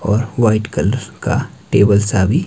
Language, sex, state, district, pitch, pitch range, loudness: Hindi, male, Himachal Pradesh, Shimla, 105 Hz, 100-110 Hz, -16 LUFS